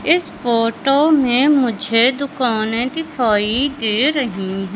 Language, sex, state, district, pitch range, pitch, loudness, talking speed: Hindi, male, Madhya Pradesh, Katni, 225-280 Hz, 245 Hz, -16 LUFS, 100 wpm